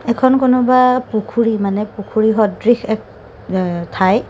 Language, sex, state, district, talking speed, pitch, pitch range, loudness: Assamese, female, Assam, Kamrup Metropolitan, 110 wpm, 220 Hz, 205-250 Hz, -15 LUFS